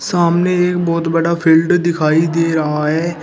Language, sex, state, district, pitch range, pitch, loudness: Hindi, male, Uttar Pradesh, Shamli, 160-175 Hz, 165 Hz, -14 LUFS